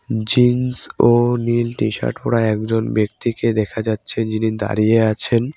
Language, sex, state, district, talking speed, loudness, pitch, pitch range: Bengali, male, West Bengal, Cooch Behar, 130 wpm, -18 LUFS, 115 Hz, 110-120 Hz